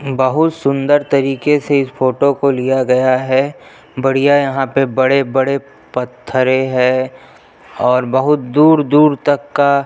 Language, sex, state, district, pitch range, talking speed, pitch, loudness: Hindi, male, Chhattisgarh, Jashpur, 130-140 Hz, 130 wpm, 135 Hz, -14 LUFS